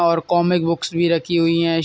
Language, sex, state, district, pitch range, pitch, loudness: Hindi, male, Uttar Pradesh, Muzaffarnagar, 165-170 Hz, 170 Hz, -18 LUFS